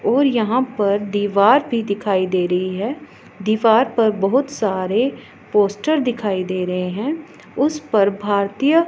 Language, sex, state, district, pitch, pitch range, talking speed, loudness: Hindi, female, Punjab, Pathankot, 210 Hz, 200-260 Hz, 140 wpm, -19 LUFS